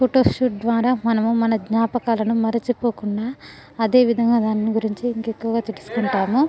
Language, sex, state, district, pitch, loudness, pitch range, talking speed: Telugu, female, Telangana, Nalgonda, 230 Hz, -20 LUFS, 220-240 Hz, 130 wpm